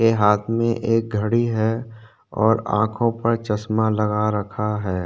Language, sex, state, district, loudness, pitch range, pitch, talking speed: Hindi, male, Chhattisgarh, Korba, -21 LUFS, 105-115 Hz, 110 Hz, 155 wpm